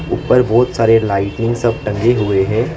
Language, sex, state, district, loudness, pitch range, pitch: Hindi, male, West Bengal, Alipurduar, -14 LUFS, 105-120 Hz, 115 Hz